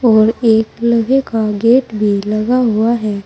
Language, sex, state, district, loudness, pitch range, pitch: Hindi, female, Uttar Pradesh, Saharanpur, -14 LUFS, 215-235 Hz, 225 Hz